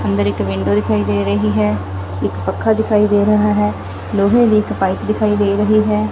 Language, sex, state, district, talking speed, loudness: Punjabi, female, Punjab, Fazilka, 205 wpm, -16 LUFS